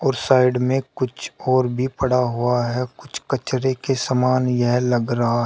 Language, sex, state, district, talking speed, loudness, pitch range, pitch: Hindi, male, Uttar Pradesh, Shamli, 185 wpm, -20 LUFS, 120-130 Hz, 125 Hz